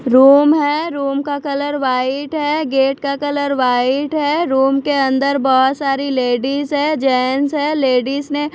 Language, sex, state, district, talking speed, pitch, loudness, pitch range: Hindi, female, Chhattisgarh, Raipur, 160 wpm, 280 Hz, -16 LUFS, 265-290 Hz